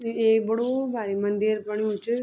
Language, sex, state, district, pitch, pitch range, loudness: Garhwali, female, Uttarakhand, Tehri Garhwal, 220 Hz, 210-230 Hz, -25 LUFS